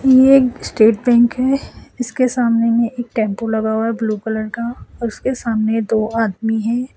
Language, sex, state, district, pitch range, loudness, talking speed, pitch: Hindi, male, Assam, Sonitpur, 220-250 Hz, -17 LUFS, 190 wpm, 230 Hz